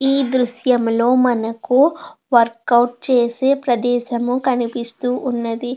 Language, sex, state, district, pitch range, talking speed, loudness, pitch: Telugu, female, Andhra Pradesh, Anantapur, 240-255 Hz, 95 wpm, -17 LUFS, 245 Hz